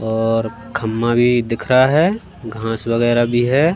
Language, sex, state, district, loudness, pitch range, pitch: Hindi, male, Madhya Pradesh, Katni, -17 LUFS, 115-125 Hz, 120 Hz